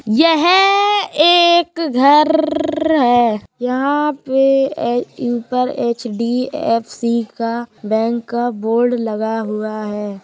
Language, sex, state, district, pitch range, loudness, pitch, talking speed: Hindi, male, Uttar Pradesh, Jalaun, 230-310 Hz, -16 LUFS, 245 Hz, 90 wpm